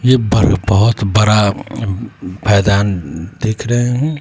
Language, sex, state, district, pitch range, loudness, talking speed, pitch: Hindi, male, Bihar, West Champaran, 100-115 Hz, -14 LUFS, 100 wpm, 105 Hz